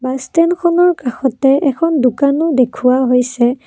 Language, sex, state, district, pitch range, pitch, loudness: Assamese, female, Assam, Kamrup Metropolitan, 250-320 Hz, 270 Hz, -14 LUFS